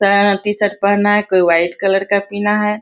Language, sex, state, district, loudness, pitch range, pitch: Hindi, female, Bihar, Bhagalpur, -14 LUFS, 195-205 Hz, 200 Hz